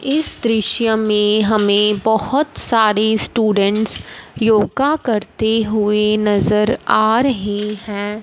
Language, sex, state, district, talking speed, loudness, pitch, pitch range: Hindi, female, Punjab, Fazilka, 100 wpm, -15 LUFS, 215 Hz, 210-225 Hz